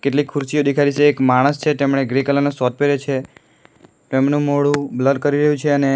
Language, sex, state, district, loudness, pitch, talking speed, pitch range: Gujarati, male, Gujarat, Valsad, -17 LUFS, 140 Hz, 250 wpm, 135-145 Hz